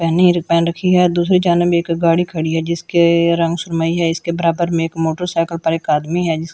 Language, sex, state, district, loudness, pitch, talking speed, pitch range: Hindi, female, Delhi, New Delhi, -16 LUFS, 170 Hz, 250 wpm, 165-175 Hz